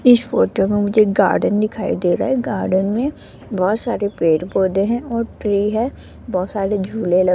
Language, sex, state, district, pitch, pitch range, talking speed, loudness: Hindi, female, Rajasthan, Jaipur, 205 Hz, 190-230 Hz, 195 wpm, -18 LUFS